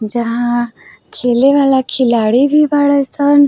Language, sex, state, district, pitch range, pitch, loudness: Bhojpuri, female, Uttar Pradesh, Varanasi, 240-285 Hz, 265 Hz, -12 LUFS